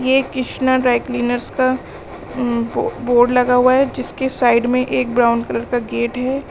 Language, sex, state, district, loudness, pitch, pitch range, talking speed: Hindi, female, Uttar Pradesh, Lalitpur, -17 LUFS, 250 Hz, 240-260 Hz, 185 wpm